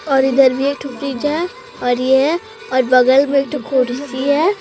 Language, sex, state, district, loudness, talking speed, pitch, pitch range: Hindi, female, Chhattisgarh, Raipur, -16 LUFS, 130 wpm, 275 Hz, 260-300 Hz